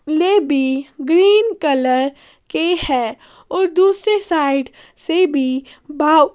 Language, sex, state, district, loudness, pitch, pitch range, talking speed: Hindi, female, Haryana, Jhajjar, -16 LUFS, 305 Hz, 275-365 Hz, 115 wpm